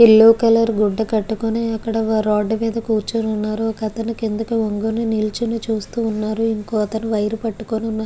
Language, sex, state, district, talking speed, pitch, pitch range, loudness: Telugu, female, Andhra Pradesh, Guntur, 150 wpm, 220 Hz, 215-225 Hz, -19 LUFS